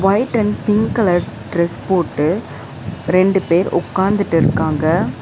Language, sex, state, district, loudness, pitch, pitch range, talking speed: Tamil, female, Tamil Nadu, Chennai, -17 LUFS, 175 Hz, 160-195 Hz, 105 wpm